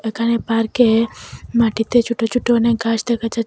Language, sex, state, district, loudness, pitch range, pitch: Bengali, female, Assam, Hailakandi, -17 LUFS, 225-235 Hz, 230 Hz